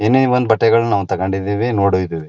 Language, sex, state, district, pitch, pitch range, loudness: Kannada, male, Karnataka, Mysore, 105 Hz, 95-115 Hz, -16 LUFS